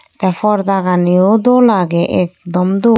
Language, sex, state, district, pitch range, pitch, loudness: Chakma, female, Tripura, Unakoti, 180-210 Hz, 190 Hz, -13 LUFS